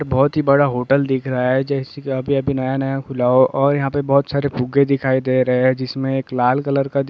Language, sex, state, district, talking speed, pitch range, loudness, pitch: Hindi, male, Jharkhand, Sahebganj, 260 wpm, 130-140 Hz, -18 LUFS, 135 Hz